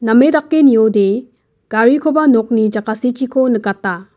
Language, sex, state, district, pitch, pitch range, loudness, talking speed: Garo, female, Meghalaya, West Garo Hills, 230 Hz, 215-260 Hz, -13 LUFS, 85 wpm